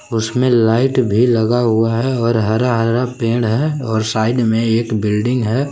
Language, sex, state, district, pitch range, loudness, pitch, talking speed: Hindi, male, Jharkhand, Palamu, 110-125 Hz, -16 LUFS, 115 Hz, 180 wpm